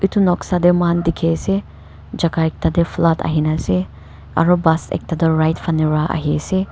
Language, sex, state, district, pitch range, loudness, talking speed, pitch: Nagamese, female, Nagaland, Kohima, 155-175 Hz, -18 LUFS, 170 wpm, 165 Hz